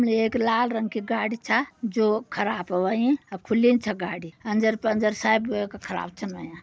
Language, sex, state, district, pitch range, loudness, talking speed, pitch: Garhwali, female, Uttarakhand, Uttarkashi, 205-230 Hz, -25 LUFS, 180 wpm, 220 Hz